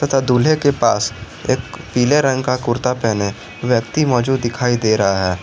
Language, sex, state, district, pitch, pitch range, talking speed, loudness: Hindi, male, Jharkhand, Garhwa, 125 Hz, 110-135 Hz, 175 wpm, -17 LUFS